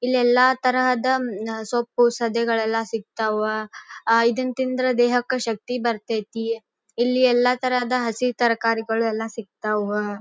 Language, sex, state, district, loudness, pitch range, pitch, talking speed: Kannada, female, Karnataka, Dharwad, -22 LUFS, 225-250 Hz, 235 Hz, 125 wpm